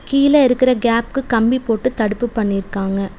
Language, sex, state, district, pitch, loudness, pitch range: Tamil, female, Tamil Nadu, Nilgiris, 235 Hz, -17 LUFS, 210-255 Hz